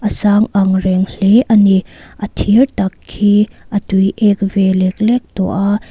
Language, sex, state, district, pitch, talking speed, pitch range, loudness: Mizo, female, Mizoram, Aizawl, 200 Hz, 180 wpm, 190-210 Hz, -13 LUFS